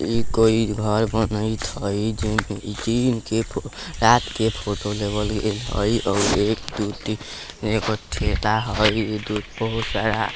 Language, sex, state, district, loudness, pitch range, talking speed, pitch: Hindi, male, Bihar, Vaishali, -22 LUFS, 105-110 Hz, 100 wpm, 105 Hz